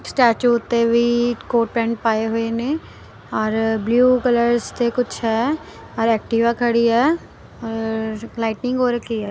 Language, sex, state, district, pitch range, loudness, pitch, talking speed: Punjabi, female, Punjab, Kapurthala, 225-240 Hz, -19 LUFS, 235 Hz, 150 wpm